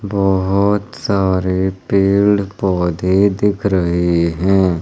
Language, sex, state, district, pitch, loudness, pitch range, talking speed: Hindi, male, Madhya Pradesh, Umaria, 95 Hz, -16 LUFS, 95-100 Hz, 85 wpm